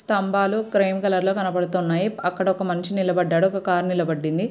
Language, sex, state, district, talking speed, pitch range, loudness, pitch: Telugu, female, Andhra Pradesh, Srikakulam, 160 wpm, 180-195 Hz, -22 LUFS, 190 Hz